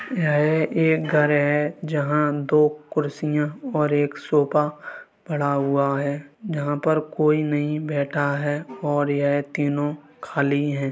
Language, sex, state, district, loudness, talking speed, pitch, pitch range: Hindi, male, Uttar Pradesh, Varanasi, -22 LUFS, 130 wpm, 150 Hz, 145-150 Hz